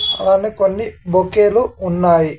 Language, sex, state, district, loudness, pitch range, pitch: Telugu, male, Andhra Pradesh, Sri Satya Sai, -15 LUFS, 180-210 Hz, 195 Hz